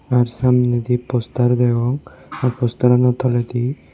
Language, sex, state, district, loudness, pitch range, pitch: Chakma, male, Tripura, West Tripura, -18 LUFS, 120-125 Hz, 125 Hz